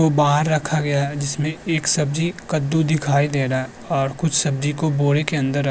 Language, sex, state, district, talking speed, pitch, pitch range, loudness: Hindi, male, Uttar Pradesh, Budaun, 230 wpm, 150 Hz, 140-155 Hz, -20 LUFS